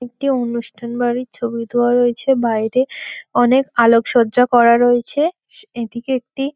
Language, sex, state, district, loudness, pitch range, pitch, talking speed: Bengali, female, West Bengal, Malda, -16 LUFS, 235-260 Hz, 245 Hz, 120 wpm